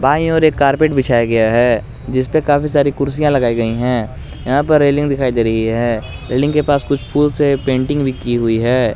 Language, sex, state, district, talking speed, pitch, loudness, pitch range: Hindi, male, Jharkhand, Garhwa, 215 wpm, 135 Hz, -15 LUFS, 120-145 Hz